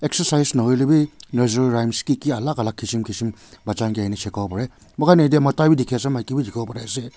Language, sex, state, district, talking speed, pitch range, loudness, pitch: Nagamese, male, Nagaland, Kohima, 160 wpm, 115-150 Hz, -20 LUFS, 125 Hz